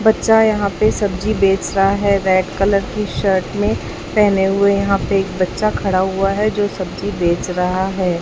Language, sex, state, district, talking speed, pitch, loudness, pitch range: Hindi, male, Chhattisgarh, Raipur, 190 wpm, 195 Hz, -17 LUFS, 190-205 Hz